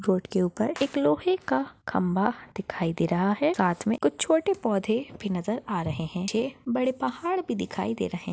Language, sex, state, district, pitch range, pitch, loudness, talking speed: Hindi, female, Chhattisgarh, Bastar, 180-250 Hz, 205 Hz, -27 LUFS, 200 wpm